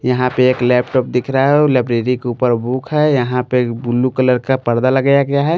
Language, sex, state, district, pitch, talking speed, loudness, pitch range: Hindi, male, Bihar, Patna, 125 Hz, 225 wpm, -15 LUFS, 125-135 Hz